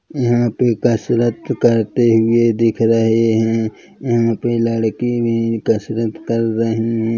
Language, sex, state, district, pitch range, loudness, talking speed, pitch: Hindi, male, Chhattisgarh, Korba, 115-120 Hz, -16 LUFS, 135 wpm, 115 Hz